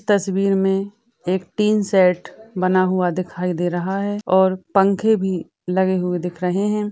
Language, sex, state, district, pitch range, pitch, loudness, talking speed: Hindi, female, Maharashtra, Sindhudurg, 180-200 Hz, 190 Hz, -19 LUFS, 165 wpm